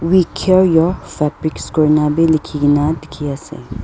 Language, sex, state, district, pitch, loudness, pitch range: Nagamese, female, Nagaland, Dimapur, 155 Hz, -15 LUFS, 150-165 Hz